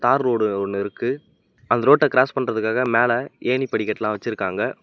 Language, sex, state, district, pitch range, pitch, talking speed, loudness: Tamil, male, Tamil Nadu, Namakkal, 105-130 Hz, 115 Hz, 135 wpm, -21 LUFS